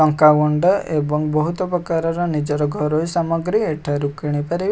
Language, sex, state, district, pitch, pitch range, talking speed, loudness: Odia, male, Odisha, Khordha, 155 Hz, 150-170 Hz, 140 wpm, -19 LUFS